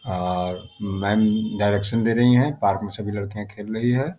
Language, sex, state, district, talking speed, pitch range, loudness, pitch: Hindi, male, Bihar, Muzaffarpur, 185 wpm, 100-115 Hz, -22 LUFS, 105 Hz